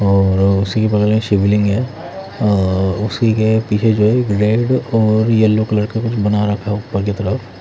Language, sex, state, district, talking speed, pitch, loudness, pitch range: Hindi, male, Odisha, Khordha, 205 wpm, 105 Hz, -15 LUFS, 100-110 Hz